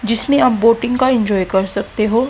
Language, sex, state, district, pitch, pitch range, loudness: Hindi, female, Haryana, Jhajjar, 230 Hz, 205-250 Hz, -15 LUFS